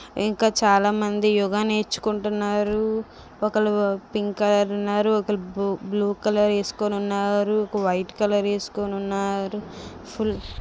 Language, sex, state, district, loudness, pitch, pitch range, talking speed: Telugu, female, Andhra Pradesh, Visakhapatnam, -23 LUFS, 205 Hz, 200-210 Hz, 100 wpm